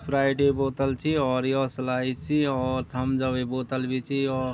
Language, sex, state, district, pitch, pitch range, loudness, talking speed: Garhwali, male, Uttarakhand, Tehri Garhwal, 130 Hz, 130-135 Hz, -26 LUFS, 200 wpm